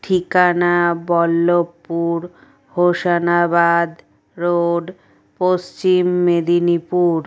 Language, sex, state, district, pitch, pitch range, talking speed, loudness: Bengali, female, West Bengal, Paschim Medinipur, 175 Hz, 170-180 Hz, 50 wpm, -17 LUFS